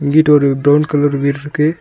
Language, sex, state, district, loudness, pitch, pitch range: Tamil, male, Tamil Nadu, Nilgiris, -13 LUFS, 145 Hz, 145-150 Hz